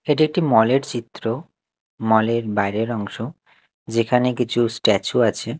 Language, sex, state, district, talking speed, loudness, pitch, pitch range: Bengali, male, Chhattisgarh, Raipur, 140 wpm, -20 LUFS, 115 Hz, 110-130 Hz